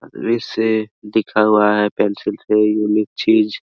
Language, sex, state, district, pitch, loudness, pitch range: Hindi, male, Bihar, Araria, 105 Hz, -17 LUFS, 105-110 Hz